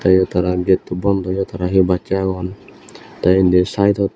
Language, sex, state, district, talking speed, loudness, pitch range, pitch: Chakma, male, Tripura, Unakoti, 175 wpm, -17 LUFS, 90-95 Hz, 95 Hz